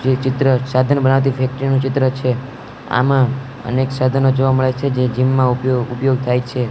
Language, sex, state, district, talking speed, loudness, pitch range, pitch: Gujarati, male, Gujarat, Gandhinagar, 190 wpm, -17 LUFS, 125-135 Hz, 130 Hz